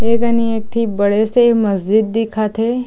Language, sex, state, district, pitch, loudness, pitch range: Chhattisgarhi, female, Chhattisgarh, Jashpur, 225 Hz, -15 LUFS, 215-230 Hz